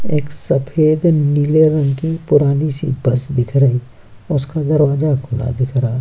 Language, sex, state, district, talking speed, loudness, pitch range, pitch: Hindi, male, Bihar, Kishanganj, 150 wpm, -16 LUFS, 130-155 Hz, 145 Hz